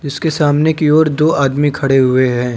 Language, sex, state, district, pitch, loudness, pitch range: Hindi, male, Uttar Pradesh, Lucknow, 145 Hz, -13 LUFS, 135-155 Hz